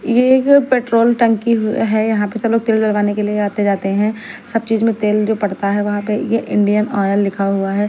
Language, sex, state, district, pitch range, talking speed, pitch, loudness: Hindi, female, Delhi, New Delhi, 205-230 Hz, 230 wpm, 215 Hz, -16 LUFS